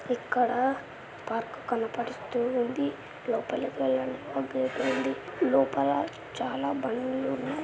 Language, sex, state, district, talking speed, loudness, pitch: Telugu, female, Andhra Pradesh, Anantapur, 95 wpm, -30 LUFS, 230 Hz